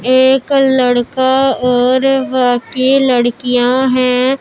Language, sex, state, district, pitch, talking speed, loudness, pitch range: Hindi, female, Punjab, Pathankot, 255 Hz, 80 wpm, -12 LUFS, 250-265 Hz